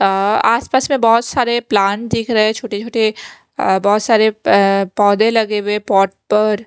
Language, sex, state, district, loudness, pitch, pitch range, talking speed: Hindi, female, Maharashtra, Mumbai Suburban, -15 LUFS, 215 Hz, 205-230 Hz, 155 wpm